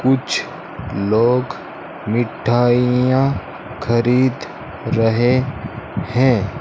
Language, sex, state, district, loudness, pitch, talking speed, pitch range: Hindi, male, Rajasthan, Bikaner, -18 LUFS, 120 Hz, 55 wpm, 110-130 Hz